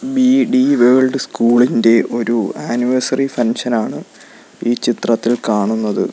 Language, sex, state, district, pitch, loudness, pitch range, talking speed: Malayalam, male, Kerala, Kollam, 120 Hz, -15 LUFS, 115-130 Hz, 90 wpm